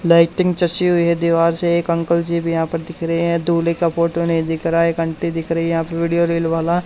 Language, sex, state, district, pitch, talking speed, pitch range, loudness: Hindi, male, Haryana, Charkhi Dadri, 170 Hz, 260 wpm, 165-170 Hz, -18 LUFS